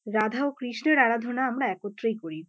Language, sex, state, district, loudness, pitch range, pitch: Bengali, female, West Bengal, North 24 Parganas, -26 LUFS, 215-260 Hz, 235 Hz